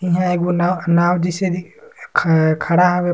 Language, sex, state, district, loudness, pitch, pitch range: Surgujia, male, Chhattisgarh, Sarguja, -17 LUFS, 175 Hz, 175-180 Hz